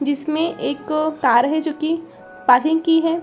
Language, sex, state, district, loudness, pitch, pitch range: Hindi, female, Bihar, Saran, -19 LUFS, 310 Hz, 285-325 Hz